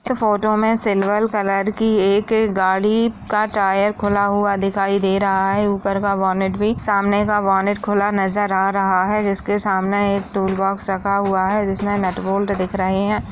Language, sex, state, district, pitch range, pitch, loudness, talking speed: Hindi, female, Uttar Pradesh, Budaun, 195-205 Hz, 200 Hz, -18 LUFS, 185 wpm